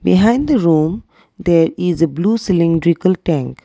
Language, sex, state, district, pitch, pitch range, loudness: English, female, Assam, Kamrup Metropolitan, 170 Hz, 165-195 Hz, -15 LUFS